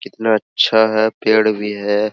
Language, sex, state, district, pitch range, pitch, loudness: Hindi, male, Bihar, Araria, 105-110 Hz, 110 Hz, -16 LUFS